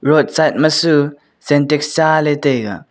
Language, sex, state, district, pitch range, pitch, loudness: Wancho, male, Arunachal Pradesh, Longding, 145-155 Hz, 150 Hz, -14 LUFS